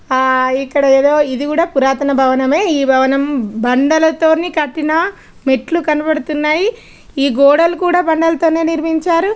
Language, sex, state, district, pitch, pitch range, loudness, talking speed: Telugu, female, Telangana, Nalgonda, 300 Hz, 270-325 Hz, -14 LUFS, 115 wpm